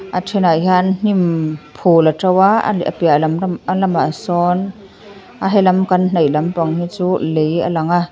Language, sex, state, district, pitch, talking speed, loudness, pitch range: Mizo, female, Mizoram, Aizawl, 180 Hz, 160 wpm, -15 LUFS, 165-190 Hz